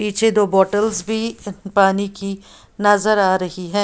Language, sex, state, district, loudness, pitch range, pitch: Hindi, female, Uttar Pradesh, Lalitpur, -18 LUFS, 195-210 Hz, 200 Hz